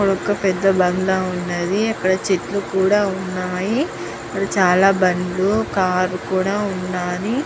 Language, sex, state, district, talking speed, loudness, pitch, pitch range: Telugu, female, Andhra Pradesh, Guntur, 105 wpm, -19 LUFS, 190 Hz, 185-200 Hz